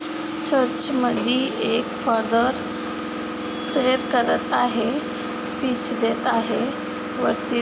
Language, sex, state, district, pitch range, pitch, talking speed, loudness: Marathi, female, Maharashtra, Dhule, 245-270 Hz, 255 Hz, 85 wpm, -22 LUFS